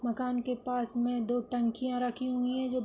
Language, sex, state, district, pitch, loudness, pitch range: Hindi, female, Uttar Pradesh, Hamirpur, 250 Hz, -32 LUFS, 240-250 Hz